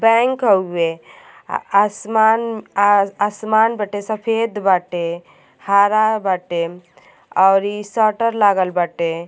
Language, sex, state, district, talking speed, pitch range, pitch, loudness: Bhojpuri, female, Uttar Pradesh, Gorakhpur, 95 wpm, 180-220 Hz, 205 Hz, -17 LUFS